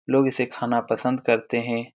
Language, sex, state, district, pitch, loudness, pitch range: Hindi, male, Bihar, Saran, 120 Hz, -24 LUFS, 115-125 Hz